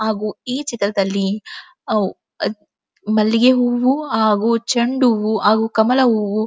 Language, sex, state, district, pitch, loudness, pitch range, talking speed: Kannada, female, Karnataka, Dharwad, 220 Hz, -17 LUFS, 215-245 Hz, 110 wpm